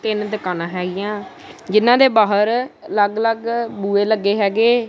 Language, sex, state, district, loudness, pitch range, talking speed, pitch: Punjabi, male, Punjab, Kapurthala, -18 LUFS, 200-230 Hz, 135 wpm, 215 Hz